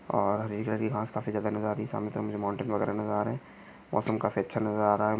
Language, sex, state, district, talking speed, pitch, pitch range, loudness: Hindi, male, Maharashtra, Chandrapur, 300 wpm, 105 Hz, 105-110 Hz, -31 LUFS